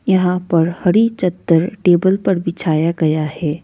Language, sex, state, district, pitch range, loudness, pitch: Hindi, female, Sikkim, Gangtok, 165-185 Hz, -16 LUFS, 175 Hz